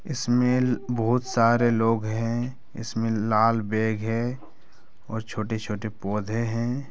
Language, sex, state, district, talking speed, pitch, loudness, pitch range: Hindi, male, Bihar, Araria, 130 wpm, 115 Hz, -25 LUFS, 110-120 Hz